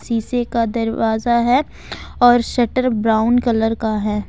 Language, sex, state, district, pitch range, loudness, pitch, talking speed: Hindi, female, Jharkhand, Ranchi, 225-245 Hz, -17 LUFS, 230 Hz, 140 wpm